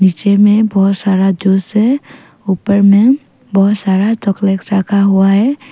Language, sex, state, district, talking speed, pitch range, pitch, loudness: Hindi, female, Arunachal Pradesh, Papum Pare, 145 wpm, 195-215 Hz, 200 Hz, -12 LUFS